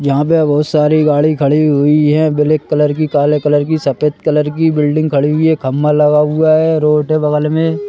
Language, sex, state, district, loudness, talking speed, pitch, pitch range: Hindi, male, Madhya Pradesh, Bhopal, -12 LUFS, 230 wpm, 150 Hz, 150-155 Hz